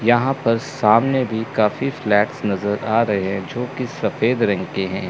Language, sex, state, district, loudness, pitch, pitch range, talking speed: Hindi, male, Chandigarh, Chandigarh, -20 LUFS, 110 Hz, 105-120 Hz, 175 wpm